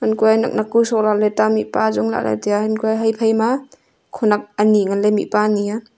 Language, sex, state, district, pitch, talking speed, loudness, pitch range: Wancho, female, Arunachal Pradesh, Longding, 215 Hz, 210 wpm, -17 LUFS, 205-225 Hz